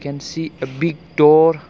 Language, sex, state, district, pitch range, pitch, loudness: English, male, Arunachal Pradesh, Longding, 145-160 Hz, 155 Hz, -17 LUFS